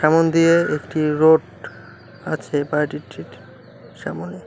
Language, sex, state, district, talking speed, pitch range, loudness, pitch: Bengali, male, West Bengal, Cooch Behar, 105 wpm, 145-160 Hz, -19 LUFS, 155 Hz